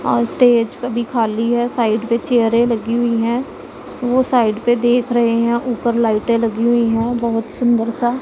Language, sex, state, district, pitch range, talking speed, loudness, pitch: Hindi, female, Punjab, Pathankot, 230-240 Hz, 185 wpm, -17 LUFS, 235 Hz